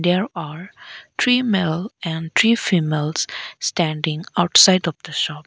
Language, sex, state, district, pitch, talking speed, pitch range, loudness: English, female, Arunachal Pradesh, Lower Dibang Valley, 170 Hz, 130 wpm, 160-190 Hz, -19 LUFS